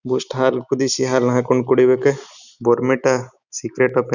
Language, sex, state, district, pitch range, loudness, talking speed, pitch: Kannada, male, Karnataka, Bijapur, 125-130 Hz, -18 LUFS, 160 wpm, 130 Hz